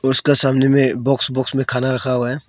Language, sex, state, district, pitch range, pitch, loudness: Hindi, male, Arunachal Pradesh, Longding, 130-135 Hz, 130 Hz, -17 LUFS